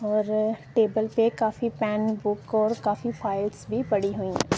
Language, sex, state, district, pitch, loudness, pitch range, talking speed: Hindi, female, Punjab, Kapurthala, 215 Hz, -26 LUFS, 210-225 Hz, 155 wpm